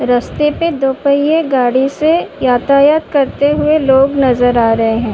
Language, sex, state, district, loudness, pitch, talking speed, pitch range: Hindi, female, Uttar Pradesh, Muzaffarnagar, -12 LUFS, 275 Hz, 150 wpm, 245-295 Hz